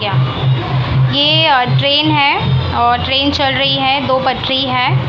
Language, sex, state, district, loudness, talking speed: Hindi, female, Maharashtra, Mumbai Suburban, -12 LUFS, 140 wpm